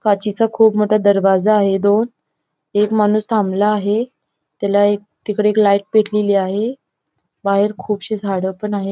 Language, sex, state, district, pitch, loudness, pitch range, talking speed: Marathi, female, Goa, North and South Goa, 210 Hz, -16 LUFS, 200-215 Hz, 150 wpm